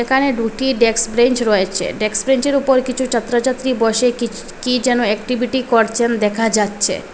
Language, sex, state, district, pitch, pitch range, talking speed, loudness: Bengali, female, Assam, Hailakandi, 235 Hz, 225-255 Hz, 160 wpm, -16 LUFS